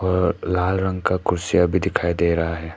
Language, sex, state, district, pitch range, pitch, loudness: Hindi, male, Arunachal Pradesh, Papum Pare, 85-95 Hz, 90 Hz, -21 LUFS